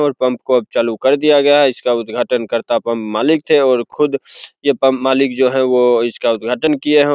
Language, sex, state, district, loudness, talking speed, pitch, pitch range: Hindi, male, Bihar, Begusarai, -15 LUFS, 220 wpm, 130 Hz, 120-145 Hz